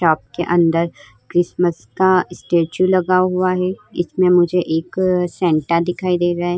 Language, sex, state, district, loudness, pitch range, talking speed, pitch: Hindi, female, Uttar Pradesh, Hamirpur, -17 LUFS, 170-185 Hz, 155 wpm, 175 Hz